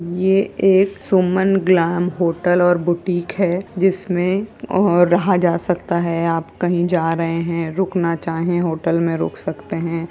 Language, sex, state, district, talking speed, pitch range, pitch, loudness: Hindi, female, Uttar Pradesh, Jyotiba Phule Nagar, 155 wpm, 170-185 Hz, 175 Hz, -18 LUFS